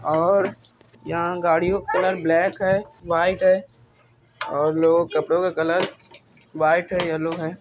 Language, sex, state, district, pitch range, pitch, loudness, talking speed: Hindi, male, Andhra Pradesh, Anantapur, 160-185 Hz, 170 Hz, -21 LUFS, 150 wpm